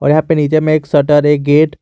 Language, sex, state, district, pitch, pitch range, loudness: Hindi, male, Jharkhand, Garhwa, 150 Hz, 145-155 Hz, -12 LUFS